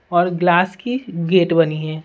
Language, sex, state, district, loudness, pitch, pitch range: Hindi, female, Bihar, Patna, -17 LUFS, 175 Hz, 165-185 Hz